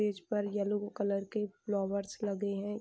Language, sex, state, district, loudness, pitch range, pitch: Hindi, female, Bihar, Gopalganj, -35 LUFS, 200-210 Hz, 205 Hz